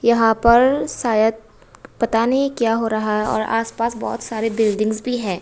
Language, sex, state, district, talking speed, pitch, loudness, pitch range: Hindi, female, Tripura, West Tripura, 175 wpm, 225 Hz, -19 LUFS, 220-235 Hz